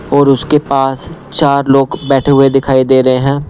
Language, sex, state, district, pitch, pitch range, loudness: Hindi, male, Punjab, Pathankot, 135 Hz, 135-140 Hz, -11 LUFS